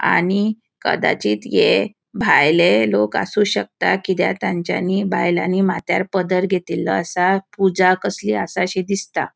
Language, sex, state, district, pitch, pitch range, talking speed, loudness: Konkani, female, Goa, North and South Goa, 185 Hz, 170-195 Hz, 115 wpm, -18 LUFS